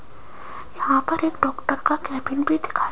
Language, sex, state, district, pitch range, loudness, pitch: Hindi, female, Rajasthan, Jaipur, 280-325 Hz, -23 LUFS, 320 Hz